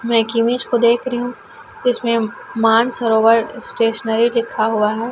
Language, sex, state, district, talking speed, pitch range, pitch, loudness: Hindi, female, Chhattisgarh, Raipur, 150 wpm, 225-235 Hz, 230 Hz, -17 LUFS